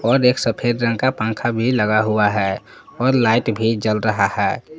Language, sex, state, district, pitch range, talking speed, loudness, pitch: Hindi, male, Jharkhand, Palamu, 105-125 Hz, 200 wpm, -18 LUFS, 115 Hz